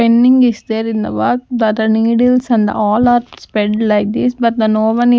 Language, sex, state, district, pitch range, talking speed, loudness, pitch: English, female, Punjab, Fazilka, 220-245 Hz, 220 wpm, -13 LUFS, 230 Hz